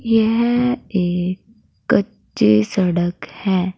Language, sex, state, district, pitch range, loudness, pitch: Hindi, female, Uttar Pradesh, Saharanpur, 175-225 Hz, -18 LUFS, 185 Hz